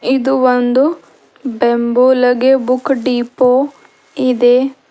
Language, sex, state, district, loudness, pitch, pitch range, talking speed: Kannada, female, Karnataka, Bidar, -13 LUFS, 255 Hz, 245-265 Hz, 75 wpm